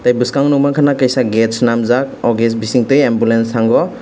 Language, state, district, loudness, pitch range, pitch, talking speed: Kokborok, Tripura, West Tripura, -13 LUFS, 115-135 Hz, 120 Hz, 180 wpm